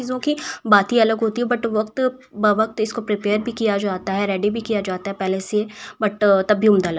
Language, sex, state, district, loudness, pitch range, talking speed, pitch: Hindi, female, Uttar Pradesh, Ghazipur, -20 LUFS, 205-230 Hz, 230 wpm, 215 Hz